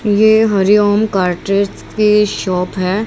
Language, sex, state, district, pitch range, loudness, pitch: Hindi, female, Haryana, Rohtak, 190-210 Hz, -13 LUFS, 205 Hz